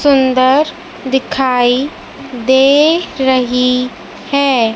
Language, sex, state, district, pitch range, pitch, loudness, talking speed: Hindi, male, Madhya Pradesh, Dhar, 250-285 Hz, 265 Hz, -13 LUFS, 65 wpm